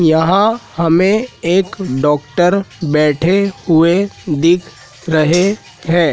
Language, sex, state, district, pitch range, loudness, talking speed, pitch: Hindi, male, Madhya Pradesh, Dhar, 160-190 Hz, -14 LUFS, 90 wpm, 170 Hz